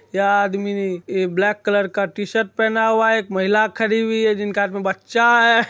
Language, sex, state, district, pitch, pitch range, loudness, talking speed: Maithili, male, Bihar, Supaul, 205 Hz, 200-225 Hz, -18 LUFS, 210 wpm